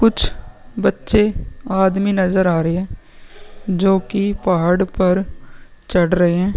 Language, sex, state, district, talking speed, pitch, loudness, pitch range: Hindi, male, Uttar Pradesh, Muzaffarnagar, 130 wpm, 190 Hz, -17 LUFS, 180-200 Hz